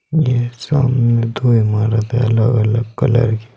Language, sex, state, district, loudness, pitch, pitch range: Hindi, male, Uttar Pradesh, Saharanpur, -15 LUFS, 120 Hz, 115-125 Hz